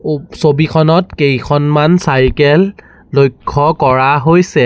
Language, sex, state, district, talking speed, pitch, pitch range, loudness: Assamese, male, Assam, Sonitpur, 90 wpm, 150 Hz, 140-165 Hz, -11 LUFS